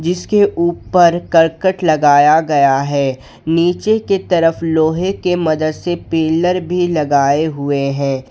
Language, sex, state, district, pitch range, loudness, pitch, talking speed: Hindi, male, Jharkhand, Ranchi, 145-175 Hz, -14 LUFS, 165 Hz, 130 wpm